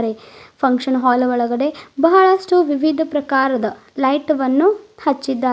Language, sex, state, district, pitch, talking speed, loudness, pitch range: Kannada, female, Karnataka, Bidar, 275 Hz, 100 wpm, -17 LUFS, 255-315 Hz